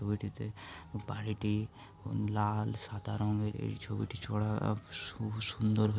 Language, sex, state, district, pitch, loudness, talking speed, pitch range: Bengali, male, West Bengal, Paschim Medinipur, 105 Hz, -36 LUFS, 100 wpm, 105-110 Hz